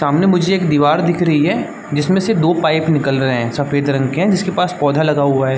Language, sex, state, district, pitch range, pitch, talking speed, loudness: Hindi, male, Chhattisgarh, Bastar, 145-175 Hz, 155 Hz, 245 wpm, -15 LUFS